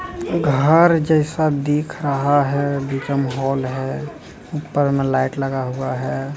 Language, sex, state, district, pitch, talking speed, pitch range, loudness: Hindi, male, Bihar, Jamui, 140 Hz, 140 wpm, 135-150 Hz, -19 LUFS